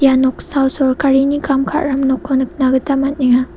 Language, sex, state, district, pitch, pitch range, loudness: Garo, female, Meghalaya, South Garo Hills, 270 Hz, 260-275 Hz, -15 LUFS